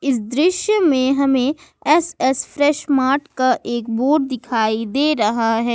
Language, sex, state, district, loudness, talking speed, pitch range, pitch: Hindi, female, Jharkhand, Ranchi, -18 LUFS, 155 wpm, 240-300 Hz, 270 Hz